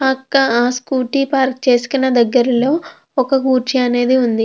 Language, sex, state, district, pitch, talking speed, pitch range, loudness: Telugu, female, Andhra Pradesh, Krishna, 260 Hz, 135 wpm, 245-265 Hz, -15 LUFS